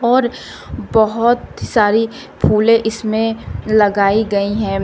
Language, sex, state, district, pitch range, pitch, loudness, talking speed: Hindi, female, Uttar Pradesh, Shamli, 210-230 Hz, 220 Hz, -15 LUFS, 100 wpm